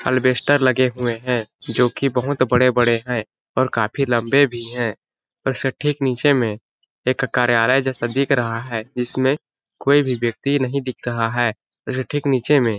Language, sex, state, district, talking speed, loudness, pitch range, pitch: Hindi, male, Chhattisgarh, Balrampur, 180 wpm, -20 LUFS, 120-135 Hz, 125 Hz